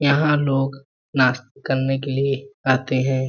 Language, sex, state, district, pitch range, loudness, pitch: Hindi, male, Chhattisgarh, Balrampur, 130-140 Hz, -21 LUFS, 135 Hz